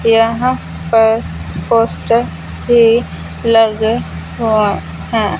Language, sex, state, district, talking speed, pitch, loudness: Hindi, female, Punjab, Fazilka, 65 wpm, 225 Hz, -14 LUFS